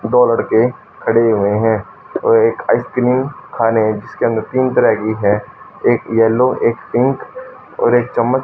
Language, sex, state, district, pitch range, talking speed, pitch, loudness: Hindi, male, Haryana, Charkhi Dadri, 110-130 Hz, 165 wpm, 120 Hz, -15 LUFS